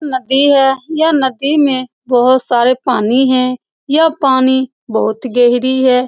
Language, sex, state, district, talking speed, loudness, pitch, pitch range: Hindi, female, Bihar, Saran, 140 wpm, -12 LUFS, 260 Hz, 255-275 Hz